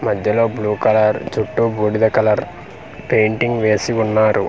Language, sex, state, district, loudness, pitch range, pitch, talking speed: Telugu, male, Andhra Pradesh, Manyam, -17 LUFS, 105-110 Hz, 110 Hz, 120 wpm